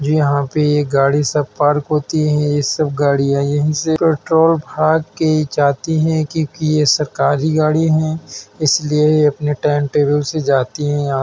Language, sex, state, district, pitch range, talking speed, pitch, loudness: Hindi, male, Uttar Pradesh, Hamirpur, 145-155 Hz, 180 wpm, 150 Hz, -16 LUFS